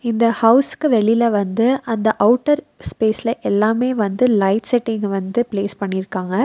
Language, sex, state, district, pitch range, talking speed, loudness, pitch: Tamil, female, Tamil Nadu, Nilgiris, 205-240 Hz, 130 wpm, -18 LUFS, 225 Hz